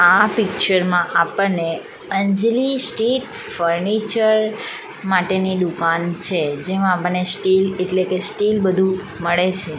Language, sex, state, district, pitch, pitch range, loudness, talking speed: Gujarati, female, Gujarat, Valsad, 190 Hz, 175-205 Hz, -19 LUFS, 110 wpm